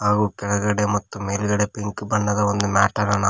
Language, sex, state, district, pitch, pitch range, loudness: Kannada, male, Karnataka, Koppal, 105 Hz, 100-105 Hz, -21 LUFS